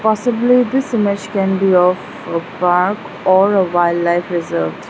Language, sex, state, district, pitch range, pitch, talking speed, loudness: English, female, Arunachal Pradesh, Lower Dibang Valley, 175-220 Hz, 190 Hz, 145 wpm, -15 LUFS